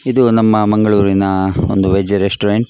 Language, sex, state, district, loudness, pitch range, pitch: Kannada, male, Karnataka, Dakshina Kannada, -13 LUFS, 100-110 Hz, 105 Hz